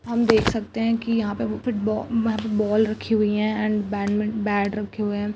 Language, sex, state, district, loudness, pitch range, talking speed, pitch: Chhattisgarhi, female, Chhattisgarh, Rajnandgaon, -23 LUFS, 210-225 Hz, 190 wpm, 215 Hz